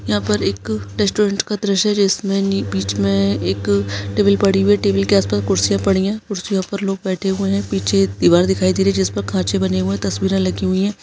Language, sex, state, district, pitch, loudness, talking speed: Hindi, female, Chhattisgarh, Kabirdham, 100 Hz, -17 LUFS, 230 wpm